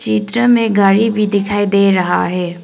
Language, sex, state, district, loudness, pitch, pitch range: Hindi, female, Arunachal Pradesh, Longding, -13 LUFS, 200 Hz, 180-210 Hz